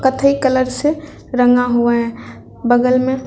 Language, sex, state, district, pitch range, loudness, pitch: Hindi, female, Bihar, Vaishali, 245-265 Hz, -15 LUFS, 255 Hz